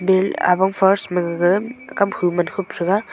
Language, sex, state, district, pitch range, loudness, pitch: Wancho, female, Arunachal Pradesh, Longding, 180-200 Hz, -19 LUFS, 190 Hz